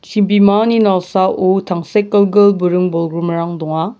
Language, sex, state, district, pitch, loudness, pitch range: Garo, male, Meghalaya, South Garo Hills, 190 Hz, -13 LUFS, 170-205 Hz